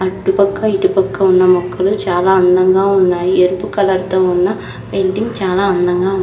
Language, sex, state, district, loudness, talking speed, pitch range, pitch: Telugu, female, Andhra Pradesh, Krishna, -13 LUFS, 145 wpm, 185-195 Hz, 190 Hz